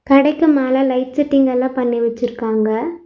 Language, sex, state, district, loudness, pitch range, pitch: Tamil, female, Tamil Nadu, Nilgiris, -16 LUFS, 240-280 Hz, 260 Hz